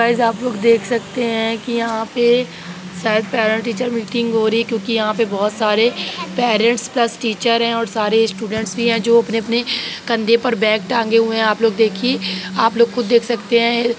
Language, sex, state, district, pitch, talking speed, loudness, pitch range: Hindi, female, Uttar Pradesh, Jalaun, 230 Hz, 200 wpm, -17 LUFS, 220-235 Hz